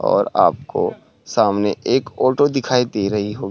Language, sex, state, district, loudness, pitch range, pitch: Hindi, male, Uttarakhand, Tehri Garhwal, -18 LUFS, 100-130 Hz, 105 Hz